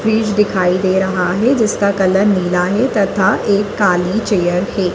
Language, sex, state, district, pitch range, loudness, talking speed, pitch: Hindi, female, Madhya Pradesh, Dhar, 185-210 Hz, -15 LUFS, 170 wpm, 195 Hz